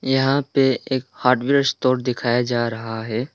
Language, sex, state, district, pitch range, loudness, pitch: Hindi, male, Arunachal Pradesh, Lower Dibang Valley, 120-135 Hz, -20 LUFS, 130 Hz